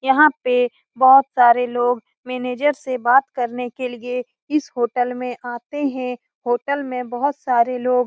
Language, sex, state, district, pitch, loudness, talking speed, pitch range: Hindi, female, Bihar, Saran, 250 Hz, -19 LUFS, 165 wpm, 245-270 Hz